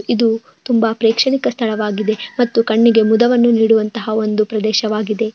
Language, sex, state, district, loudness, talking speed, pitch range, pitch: Kannada, female, Karnataka, Bijapur, -15 LUFS, 110 wpm, 215-235 Hz, 225 Hz